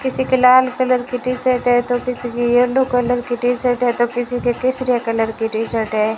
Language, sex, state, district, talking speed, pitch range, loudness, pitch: Hindi, female, Rajasthan, Bikaner, 225 wpm, 240-255 Hz, -17 LUFS, 245 Hz